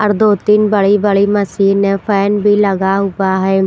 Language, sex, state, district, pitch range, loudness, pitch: Hindi, female, Punjab, Pathankot, 195-205 Hz, -12 LUFS, 200 Hz